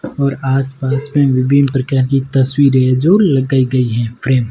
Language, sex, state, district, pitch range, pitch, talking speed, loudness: Hindi, male, Rajasthan, Barmer, 130-140 Hz, 135 Hz, 175 wpm, -14 LUFS